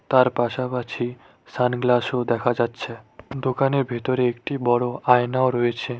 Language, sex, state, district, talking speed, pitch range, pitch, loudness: Bengali, male, West Bengal, Cooch Behar, 120 wpm, 120-130 Hz, 125 Hz, -22 LUFS